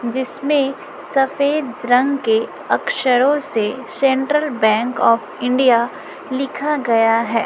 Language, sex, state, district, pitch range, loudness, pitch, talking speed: Hindi, female, Chhattisgarh, Raipur, 230-275 Hz, -17 LUFS, 260 Hz, 105 wpm